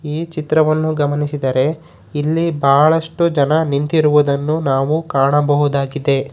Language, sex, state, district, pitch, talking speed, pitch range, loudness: Kannada, male, Karnataka, Bangalore, 150 Hz, 85 wpm, 140-155 Hz, -16 LUFS